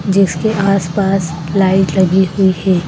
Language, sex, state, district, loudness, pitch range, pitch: Hindi, female, Madhya Pradesh, Bhopal, -14 LUFS, 180-195 Hz, 190 Hz